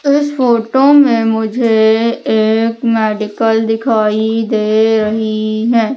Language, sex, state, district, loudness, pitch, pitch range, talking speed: Hindi, female, Madhya Pradesh, Umaria, -12 LUFS, 225 Hz, 220-235 Hz, 100 wpm